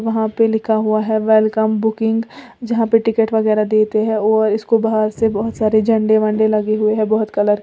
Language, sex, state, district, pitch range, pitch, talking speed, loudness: Hindi, female, Uttar Pradesh, Lalitpur, 215-225 Hz, 220 Hz, 210 wpm, -16 LUFS